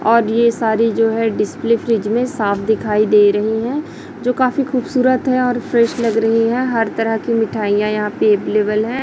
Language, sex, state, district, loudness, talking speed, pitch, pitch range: Hindi, female, Chhattisgarh, Raipur, -16 LUFS, 195 wpm, 225 Hz, 215-245 Hz